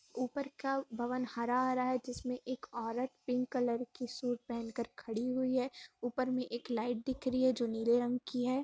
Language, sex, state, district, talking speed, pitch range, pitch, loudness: Hindi, female, Bihar, Gaya, 215 wpm, 240-255 Hz, 250 Hz, -36 LUFS